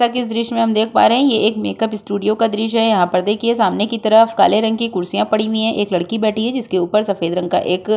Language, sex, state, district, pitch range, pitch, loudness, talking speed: Hindi, female, Uttar Pradesh, Budaun, 205-225 Hz, 215 Hz, -16 LUFS, 310 wpm